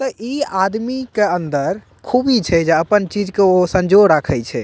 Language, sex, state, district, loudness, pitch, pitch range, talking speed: Maithili, male, Bihar, Purnia, -16 LUFS, 200 Hz, 175-230 Hz, 195 wpm